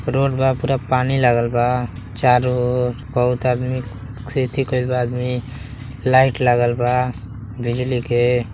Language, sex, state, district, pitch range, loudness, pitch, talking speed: Bhojpuri, male, Uttar Pradesh, Deoria, 120-130 Hz, -19 LUFS, 125 Hz, 135 wpm